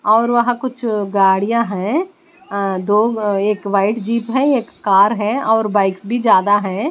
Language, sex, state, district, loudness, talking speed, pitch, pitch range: Hindi, female, Bihar, West Champaran, -16 LUFS, 165 wpm, 215 Hz, 200-240 Hz